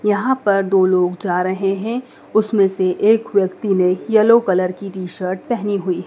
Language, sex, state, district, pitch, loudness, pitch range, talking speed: Hindi, female, Madhya Pradesh, Dhar, 195 Hz, -17 LUFS, 185-215 Hz, 190 wpm